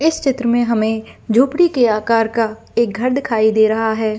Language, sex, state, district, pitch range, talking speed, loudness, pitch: Hindi, female, Jharkhand, Jamtara, 220-255 Hz, 200 wpm, -16 LUFS, 230 Hz